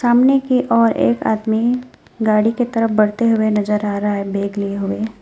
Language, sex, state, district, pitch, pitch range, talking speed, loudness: Hindi, female, West Bengal, Alipurduar, 220 Hz, 205-235 Hz, 195 wpm, -17 LUFS